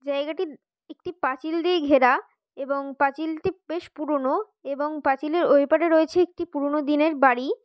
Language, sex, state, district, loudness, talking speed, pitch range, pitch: Bengali, female, West Bengal, Paschim Medinipur, -23 LUFS, 140 wpm, 280-335 Hz, 305 Hz